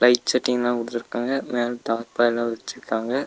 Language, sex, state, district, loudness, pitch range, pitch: Tamil, male, Tamil Nadu, Nilgiris, -24 LUFS, 120-125 Hz, 120 Hz